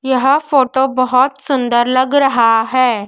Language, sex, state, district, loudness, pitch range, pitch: Hindi, female, Madhya Pradesh, Dhar, -13 LUFS, 250-270 Hz, 255 Hz